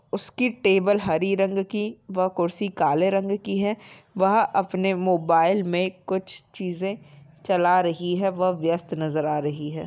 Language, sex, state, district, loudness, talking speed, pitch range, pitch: Hindi, female, Uttarakhand, Tehri Garhwal, -24 LUFS, 160 wpm, 170-195 Hz, 185 Hz